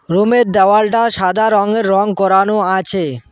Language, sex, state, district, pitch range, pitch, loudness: Bengali, male, West Bengal, Cooch Behar, 190-215 Hz, 200 Hz, -13 LUFS